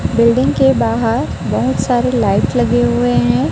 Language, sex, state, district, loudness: Hindi, female, Chhattisgarh, Raipur, -14 LUFS